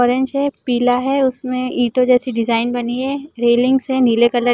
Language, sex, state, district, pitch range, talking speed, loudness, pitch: Hindi, female, Chhattisgarh, Balrampur, 240-260 Hz, 225 wpm, -17 LUFS, 250 Hz